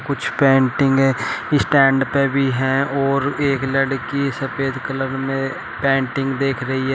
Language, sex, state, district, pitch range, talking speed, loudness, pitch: Hindi, male, Uttar Pradesh, Shamli, 135-140 Hz, 140 wpm, -19 LUFS, 135 Hz